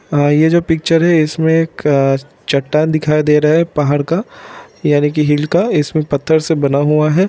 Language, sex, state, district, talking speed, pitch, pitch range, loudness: Hindi, male, Bihar, Sitamarhi, 190 wpm, 150 Hz, 145-165 Hz, -14 LUFS